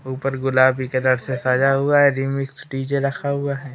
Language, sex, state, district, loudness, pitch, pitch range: Hindi, female, Madhya Pradesh, Umaria, -20 LUFS, 135 Hz, 130-140 Hz